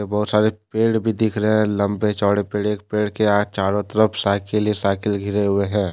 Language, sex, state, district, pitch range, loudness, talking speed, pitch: Hindi, male, Jharkhand, Deoghar, 100-110 Hz, -20 LUFS, 210 wpm, 105 Hz